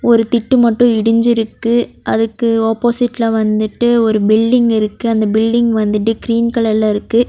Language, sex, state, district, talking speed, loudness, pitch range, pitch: Tamil, female, Tamil Nadu, Nilgiris, 130 wpm, -14 LUFS, 220-235 Hz, 230 Hz